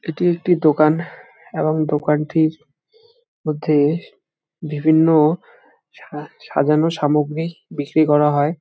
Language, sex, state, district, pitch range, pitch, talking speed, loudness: Bengali, male, West Bengal, Jalpaiguri, 150-165 Hz, 155 Hz, 90 wpm, -18 LUFS